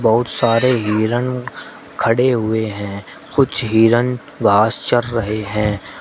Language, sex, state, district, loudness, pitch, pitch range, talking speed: Hindi, male, Uttar Pradesh, Shamli, -17 LUFS, 115 Hz, 105-120 Hz, 120 wpm